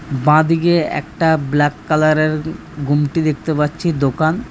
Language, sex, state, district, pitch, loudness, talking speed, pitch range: Bengali, male, West Bengal, Purulia, 155 Hz, -16 LUFS, 120 wpm, 145-160 Hz